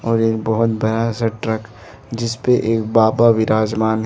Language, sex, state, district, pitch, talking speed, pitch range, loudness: Hindi, male, Arunachal Pradesh, Lower Dibang Valley, 110 Hz, 175 wpm, 110-115 Hz, -17 LUFS